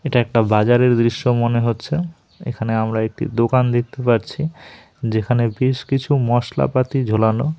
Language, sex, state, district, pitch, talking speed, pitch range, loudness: Bengali, male, West Bengal, Alipurduar, 120 Hz, 135 wpm, 115-130 Hz, -18 LUFS